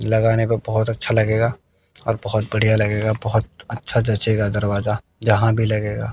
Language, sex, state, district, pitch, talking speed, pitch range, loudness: Hindi, male, Haryana, Jhajjar, 110 Hz, 155 wpm, 105-115 Hz, -20 LUFS